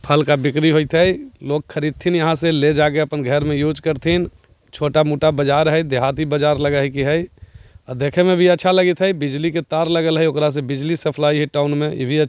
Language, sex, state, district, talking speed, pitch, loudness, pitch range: Hindi, male, Bihar, Jahanabad, 215 wpm, 150 Hz, -17 LUFS, 145-165 Hz